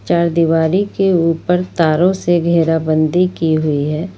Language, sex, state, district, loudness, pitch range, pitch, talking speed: Hindi, female, Jharkhand, Ranchi, -15 LUFS, 160-180 Hz, 170 Hz, 145 wpm